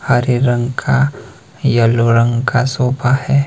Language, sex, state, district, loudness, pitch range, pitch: Hindi, male, Himachal Pradesh, Shimla, -15 LUFS, 120-135 Hz, 125 Hz